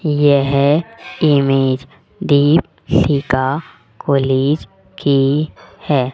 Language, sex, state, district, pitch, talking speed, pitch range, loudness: Hindi, female, Rajasthan, Jaipur, 140 Hz, 60 wpm, 135-150 Hz, -15 LUFS